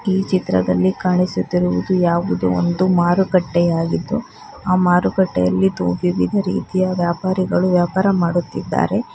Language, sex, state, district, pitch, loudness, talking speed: Kannada, female, Karnataka, Bangalore, 175 Hz, -18 LUFS, 85 wpm